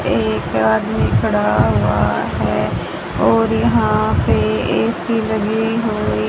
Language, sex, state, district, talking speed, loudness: Hindi, male, Haryana, Rohtak, 115 wpm, -17 LUFS